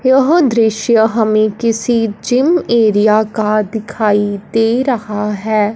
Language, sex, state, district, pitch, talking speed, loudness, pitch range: Hindi, female, Punjab, Fazilka, 220 Hz, 115 wpm, -13 LUFS, 210-235 Hz